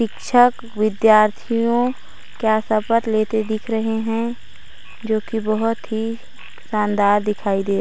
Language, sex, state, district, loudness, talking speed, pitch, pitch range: Hindi, female, Chhattisgarh, Raigarh, -19 LUFS, 125 wpm, 220 Hz, 215-230 Hz